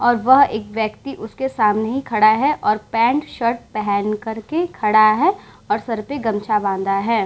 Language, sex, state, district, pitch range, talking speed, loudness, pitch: Hindi, female, Bihar, Vaishali, 215-260 Hz, 190 wpm, -18 LUFS, 220 Hz